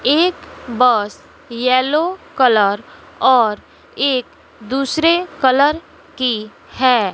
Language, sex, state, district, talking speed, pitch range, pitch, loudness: Hindi, female, Bihar, West Champaran, 85 wpm, 235-300 Hz, 255 Hz, -16 LUFS